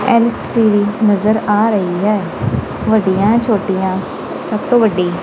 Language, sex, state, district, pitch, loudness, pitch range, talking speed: Punjabi, female, Punjab, Kapurthala, 210 Hz, -15 LUFS, 190-220 Hz, 115 wpm